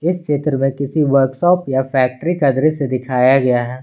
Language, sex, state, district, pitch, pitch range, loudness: Hindi, male, Jharkhand, Ranchi, 135 Hz, 130-155 Hz, -16 LUFS